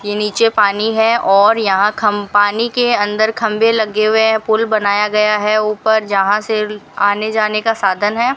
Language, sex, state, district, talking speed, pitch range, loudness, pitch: Hindi, female, Rajasthan, Bikaner, 185 wpm, 205-220 Hz, -14 LUFS, 215 Hz